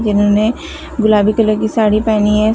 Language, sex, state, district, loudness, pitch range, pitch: Hindi, female, Chhattisgarh, Bilaspur, -13 LUFS, 210-225 Hz, 215 Hz